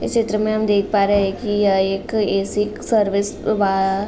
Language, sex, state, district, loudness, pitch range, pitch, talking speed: Hindi, female, Uttar Pradesh, Gorakhpur, -19 LUFS, 195-215 Hz, 205 Hz, 205 wpm